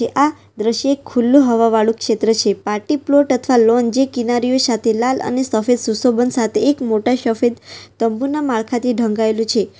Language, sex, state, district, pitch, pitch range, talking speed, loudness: Gujarati, female, Gujarat, Valsad, 240 Hz, 225-255 Hz, 165 wpm, -16 LUFS